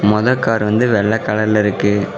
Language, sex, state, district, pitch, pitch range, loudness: Tamil, male, Tamil Nadu, Namakkal, 105 Hz, 105-115 Hz, -15 LUFS